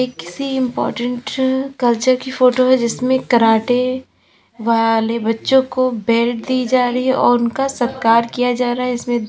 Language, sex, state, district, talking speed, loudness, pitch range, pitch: Hindi, female, Uttar Pradesh, Lalitpur, 155 wpm, -16 LUFS, 235-255 Hz, 245 Hz